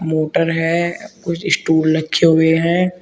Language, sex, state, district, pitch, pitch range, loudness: Hindi, male, Uttar Pradesh, Shamli, 165 Hz, 160-170 Hz, -16 LUFS